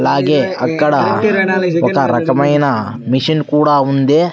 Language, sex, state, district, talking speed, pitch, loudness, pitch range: Telugu, male, Andhra Pradesh, Sri Satya Sai, 95 wpm, 150 Hz, -13 LUFS, 135-170 Hz